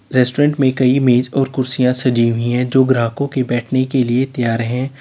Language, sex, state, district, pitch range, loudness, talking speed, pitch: Hindi, male, Uttar Pradesh, Lalitpur, 120-130 Hz, -16 LUFS, 205 wpm, 130 Hz